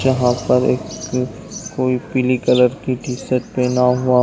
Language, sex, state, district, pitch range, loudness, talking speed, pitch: Hindi, male, Chhattisgarh, Bilaspur, 125-130 Hz, -18 LUFS, 155 wpm, 125 Hz